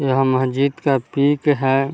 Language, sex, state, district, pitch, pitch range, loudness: Hindi, male, Bihar, Vaishali, 135 Hz, 135-140 Hz, -18 LUFS